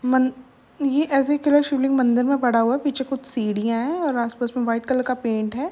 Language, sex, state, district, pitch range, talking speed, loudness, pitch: Hindi, female, Uttar Pradesh, Jalaun, 240-275 Hz, 230 wpm, -21 LUFS, 255 Hz